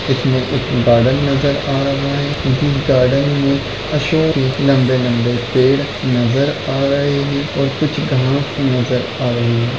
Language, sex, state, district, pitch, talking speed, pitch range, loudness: Hindi, male, Chhattisgarh, Raigarh, 135 Hz, 145 wpm, 125-140 Hz, -15 LUFS